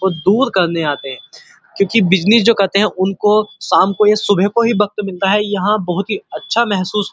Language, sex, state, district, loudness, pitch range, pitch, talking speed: Hindi, male, Uttar Pradesh, Muzaffarnagar, -15 LUFS, 190-210 Hz, 200 Hz, 210 wpm